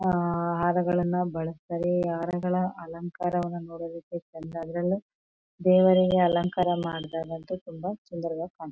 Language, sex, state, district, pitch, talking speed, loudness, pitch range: Kannada, female, Karnataka, Chamarajanagar, 175 Hz, 95 wpm, -27 LUFS, 165-180 Hz